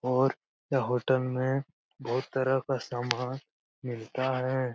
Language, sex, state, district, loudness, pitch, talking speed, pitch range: Hindi, male, Bihar, Lakhisarai, -30 LUFS, 130 Hz, 125 wpm, 125-130 Hz